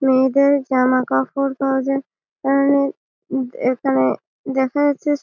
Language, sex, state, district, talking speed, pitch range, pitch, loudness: Bengali, female, West Bengal, Malda, 105 wpm, 260-275 Hz, 270 Hz, -19 LUFS